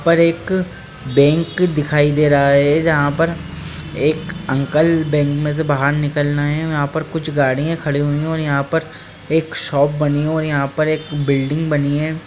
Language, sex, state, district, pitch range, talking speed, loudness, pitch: Hindi, male, Bihar, Jamui, 145-160 Hz, 195 wpm, -17 LUFS, 150 Hz